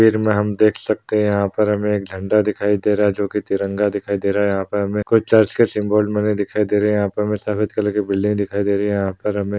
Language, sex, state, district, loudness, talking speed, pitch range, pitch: Hindi, male, Uttar Pradesh, Jyotiba Phule Nagar, -19 LUFS, 290 wpm, 100-105 Hz, 105 Hz